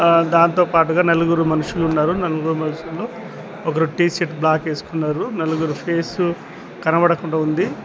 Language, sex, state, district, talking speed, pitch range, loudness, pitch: Telugu, male, Telangana, Mahabubabad, 115 wpm, 160-170 Hz, -19 LUFS, 165 Hz